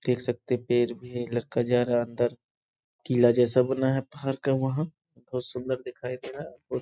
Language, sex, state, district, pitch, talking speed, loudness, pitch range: Hindi, male, Bihar, Sitamarhi, 125 Hz, 230 wpm, -27 LUFS, 120-130 Hz